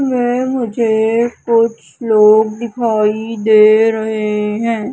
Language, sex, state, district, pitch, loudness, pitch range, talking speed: Hindi, female, Madhya Pradesh, Umaria, 220 Hz, -13 LUFS, 215-235 Hz, 95 wpm